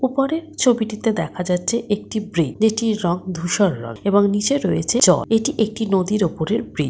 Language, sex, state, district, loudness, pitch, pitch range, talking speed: Bengali, female, West Bengal, Paschim Medinipur, -19 LUFS, 210 Hz, 180-225 Hz, 175 wpm